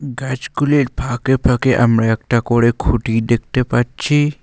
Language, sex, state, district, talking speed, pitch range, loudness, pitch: Bengali, male, West Bengal, Alipurduar, 120 wpm, 120-130 Hz, -16 LUFS, 125 Hz